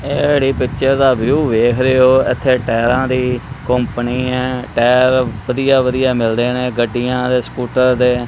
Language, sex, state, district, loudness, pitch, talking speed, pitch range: Punjabi, male, Punjab, Kapurthala, -15 LUFS, 125 Hz, 150 wpm, 120-130 Hz